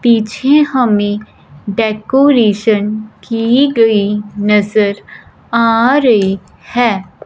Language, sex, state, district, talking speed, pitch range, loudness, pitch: Hindi, female, Punjab, Fazilka, 75 wpm, 205-240 Hz, -12 LUFS, 215 Hz